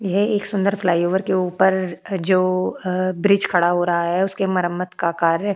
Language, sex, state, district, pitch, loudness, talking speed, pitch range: Hindi, female, Goa, North and South Goa, 185 Hz, -20 LUFS, 195 wpm, 175-195 Hz